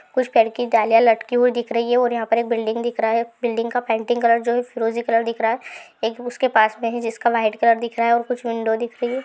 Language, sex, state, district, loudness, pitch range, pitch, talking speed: Hindi, female, Andhra Pradesh, Anantapur, -20 LUFS, 230-240 Hz, 235 Hz, 305 wpm